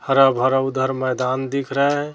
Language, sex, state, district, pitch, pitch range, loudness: Hindi, female, Chhattisgarh, Raipur, 135 Hz, 130-140 Hz, -19 LUFS